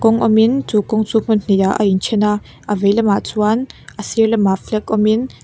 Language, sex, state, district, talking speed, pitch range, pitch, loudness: Mizo, female, Mizoram, Aizawl, 230 wpm, 205-225 Hz, 215 Hz, -16 LUFS